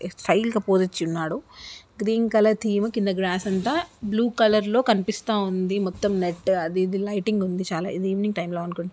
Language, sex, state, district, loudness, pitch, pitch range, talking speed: Telugu, female, Andhra Pradesh, Guntur, -24 LUFS, 200 Hz, 185-215 Hz, 190 wpm